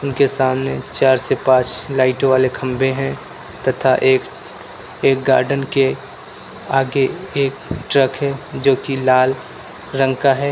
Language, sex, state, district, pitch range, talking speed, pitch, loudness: Hindi, male, Uttar Pradesh, Lucknow, 130-135 Hz, 145 wpm, 135 Hz, -17 LUFS